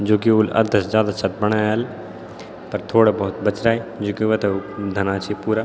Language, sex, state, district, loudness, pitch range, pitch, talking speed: Garhwali, male, Uttarakhand, Tehri Garhwal, -20 LUFS, 100-110 Hz, 105 Hz, 200 wpm